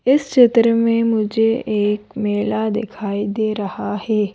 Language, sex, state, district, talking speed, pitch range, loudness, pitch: Hindi, female, Madhya Pradesh, Bhopal, 140 wpm, 210-230 Hz, -18 LUFS, 215 Hz